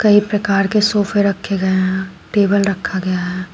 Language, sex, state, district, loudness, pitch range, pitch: Hindi, female, Uttar Pradesh, Shamli, -16 LUFS, 185-205 Hz, 195 Hz